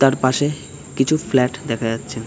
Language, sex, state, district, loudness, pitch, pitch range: Bengali, male, West Bengal, Kolkata, -20 LUFS, 135 Hz, 120-145 Hz